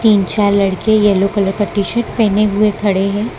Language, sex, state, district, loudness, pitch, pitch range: Hindi, female, Gujarat, Valsad, -14 LUFS, 205 Hz, 200-215 Hz